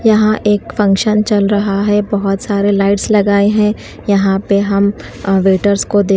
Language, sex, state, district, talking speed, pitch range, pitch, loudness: Hindi, female, Haryana, Charkhi Dadri, 165 wpm, 200-210 Hz, 205 Hz, -13 LUFS